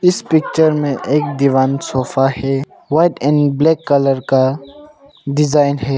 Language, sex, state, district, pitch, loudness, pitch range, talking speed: Hindi, male, Arunachal Pradesh, Longding, 140 Hz, -15 LUFS, 135-155 Hz, 120 wpm